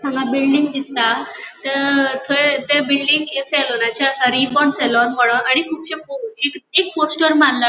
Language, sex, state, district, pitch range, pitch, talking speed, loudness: Konkani, female, Goa, North and South Goa, 265-300 Hz, 280 Hz, 150 wpm, -16 LUFS